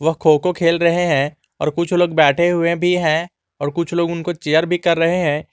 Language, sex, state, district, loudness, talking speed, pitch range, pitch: Hindi, male, Jharkhand, Garhwa, -17 LUFS, 240 wpm, 155-175 Hz, 170 Hz